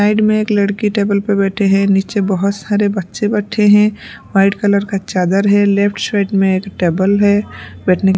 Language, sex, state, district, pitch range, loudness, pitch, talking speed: Hindi, female, Punjab, Pathankot, 195-205 Hz, -14 LUFS, 200 Hz, 200 wpm